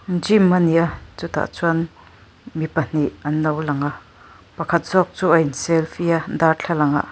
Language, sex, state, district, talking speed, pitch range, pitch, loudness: Mizo, female, Mizoram, Aizawl, 150 wpm, 155-170 Hz, 165 Hz, -20 LUFS